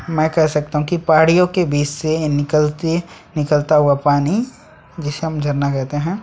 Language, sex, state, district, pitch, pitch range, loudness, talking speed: Hindi, male, Chhattisgarh, Sukma, 155 Hz, 145-165 Hz, -17 LUFS, 175 wpm